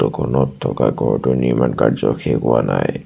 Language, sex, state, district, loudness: Assamese, male, Assam, Sonitpur, -17 LUFS